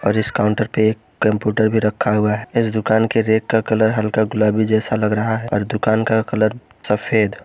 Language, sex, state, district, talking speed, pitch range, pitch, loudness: Hindi, male, Jharkhand, Garhwa, 210 wpm, 105-110 Hz, 110 Hz, -18 LUFS